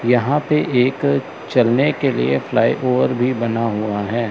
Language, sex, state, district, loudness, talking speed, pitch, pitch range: Hindi, male, Chandigarh, Chandigarh, -18 LUFS, 155 wpm, 120 Hz, 105-125 Hz